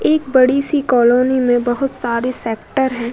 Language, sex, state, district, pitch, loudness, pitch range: Hindi, female, Uttar Pradesh, Budaun, 255 Hz, -16 LUFS, 240-270 Hz